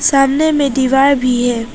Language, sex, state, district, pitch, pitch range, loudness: Hindi, female, Arunachal Pradesh, Papum Pare, 270 Hz, 250-280 Hz, -13 LUFS